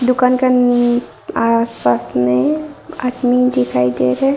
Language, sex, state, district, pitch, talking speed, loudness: Hindi, female, Arunachal Pradesh, Longding, 240 Hz, 135 wpm, -15 LUFS